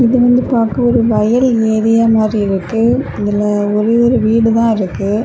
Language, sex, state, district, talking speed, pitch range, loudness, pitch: Tamil, female, Tamil Nadu, Kanyakumari, 160 wpm, 210-235 Hz, -13 LUFS, 225 Hz